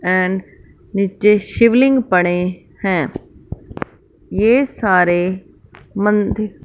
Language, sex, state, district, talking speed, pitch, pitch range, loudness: Hindi, female, Punjab, Fazilka, 70 wpm, 190 Hz, 180-210 Hz, -16 LUFS